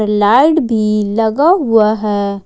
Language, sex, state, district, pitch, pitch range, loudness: Hindi, female, Jharkhand, Ranchi, 215 Hz, 210-235 Hz, -12 LUFS